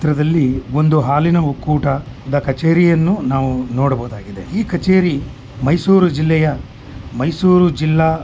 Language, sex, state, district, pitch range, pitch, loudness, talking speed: Kannada, male, Karnataka, Mysore, 130-165 Hz, 150 Hz, -15 LUFS, 140 wpm